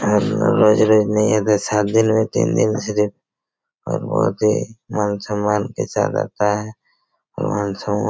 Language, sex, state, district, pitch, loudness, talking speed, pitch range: Hindi, male, Chhattisgarh, Raigarh, 105 Hz, -18 LUFS, 150 wpm, 105-110 Hz